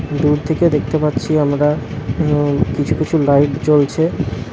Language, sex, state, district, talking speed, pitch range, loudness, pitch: Bengali, male, West Bengal, Alipurduar, 130 wpm, 140-155 Hz, -16 LUFS, 150 Hz